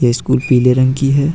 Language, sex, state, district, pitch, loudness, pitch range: Hindi, male, Jharkhand, Deoghar, 130 Hz, -13 LUFS, 125-140 Hz